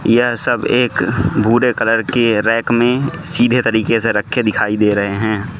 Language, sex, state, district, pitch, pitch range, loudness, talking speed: Hindi, male, Manipur, Imphal West, 115 Hz, 110-120 Hz, -15 LUFS, 170 wpm